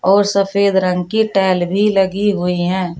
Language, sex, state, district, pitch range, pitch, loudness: Hindi, female, Uttar Pradesh, Shamli, 180-200 Hz, 195 Hz, -15 LUFS